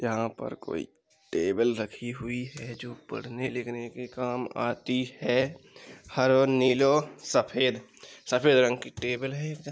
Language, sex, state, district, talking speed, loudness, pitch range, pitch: Hindi, male, Uttar Pradesh, Jalaun, 135 wpm, -28 LUFS, 120-130 Hz, 125 Hz